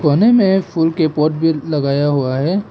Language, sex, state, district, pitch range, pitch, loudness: Hindi, male, Arunachal Pradesh, Papum Pare, 145-180 Hz, 160 Hz, -15 LUFS